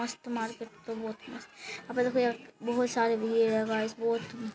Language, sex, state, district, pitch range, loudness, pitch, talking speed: Hindi, female, Uttar Pradesh, Jalaun, 225-235 Hz, -31 LUFS, 230 Hz, 90 wpm